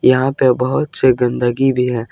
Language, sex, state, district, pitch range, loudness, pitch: Hindi, male, Jharkhand, Ranchi, 125-130 Hz, -15 LUFS, 130 Hz